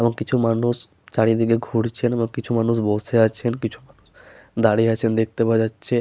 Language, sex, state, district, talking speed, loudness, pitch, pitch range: Bengali, male, West Bengal, Paschim Medinipur, 170 wpm, -21 LUFS, 115 Hz, 110-120 Hz